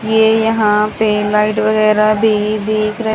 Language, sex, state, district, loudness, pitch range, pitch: Hindi, female, Haryana, Charkhi Dadri, -13 LUFS, 210-220 Hz, 215 Hz